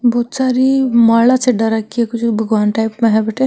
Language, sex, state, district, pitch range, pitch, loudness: Marwari, female, Rajasthan, Nagaur, 225-255 Hz, 235 Hz, -14 LUFS